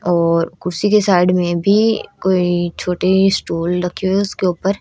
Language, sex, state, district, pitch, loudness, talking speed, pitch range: Hindi, female, Haryana, Rohtak, 180 Hz, -16 LUFS, 160 wpm, 175-195 Hz